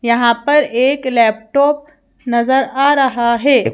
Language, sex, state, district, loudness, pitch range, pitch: Hindi, female, Madhya Pradesh, Bhopal, -14 LUFS, 235-285 Hz, 260 Hz